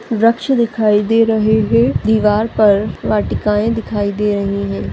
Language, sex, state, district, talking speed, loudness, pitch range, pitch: Hindi, female, Maharashtra, Chandrapur, 145 wpm, -15 LUFS, 210-225 Hz, 215 Hz